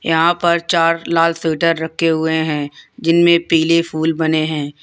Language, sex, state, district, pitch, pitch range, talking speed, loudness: Hindi, male, Uttar Pradesh, Lalitpur, 165 Hz, 160-170 Hz, 160 wpm, -16 LUFS